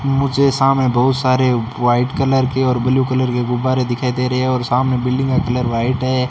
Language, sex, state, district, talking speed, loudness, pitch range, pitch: Hindi, male, Rajasthan, Bikaner, 210 wpm, -16 LUFS, 125-130 Hz, 130 Hz